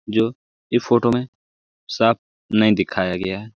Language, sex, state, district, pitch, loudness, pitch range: Hindi, male, Bihar, Lakhisarai, 110 Hz, -20 LUFS, 95-120 Hz